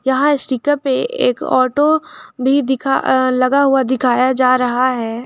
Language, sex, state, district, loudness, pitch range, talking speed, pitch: Hindi, female, Jharkhand, Garhwa, -15 LUFS, 255-285 Hz, 150 wpm, 265 Hz